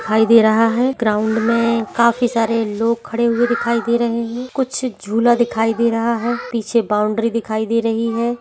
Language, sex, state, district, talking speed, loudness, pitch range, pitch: Hindi, female, Bihar, East Champaran, 195 wpm, -17 LUFS, 225-235 Hz, 230 Hz